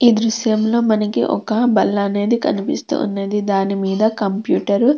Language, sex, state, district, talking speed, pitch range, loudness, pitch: Telugu, female, Andhra Pradesh, Krishna, 130 wpm, 200-230 Hz, -17 LUFS, 215 Hz